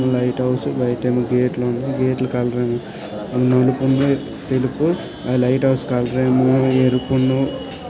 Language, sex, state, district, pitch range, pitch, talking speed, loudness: Telugu, male, Andhra Pradesh, Srikakulam, 125-135 Hz, 130 Hz, 145 wpm, -19 LUFS